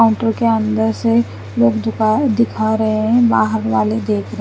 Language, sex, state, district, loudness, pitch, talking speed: Hindi, female, Chandigarh, Chandigarh, -16 LUFS, 220 Hz, 165 wpm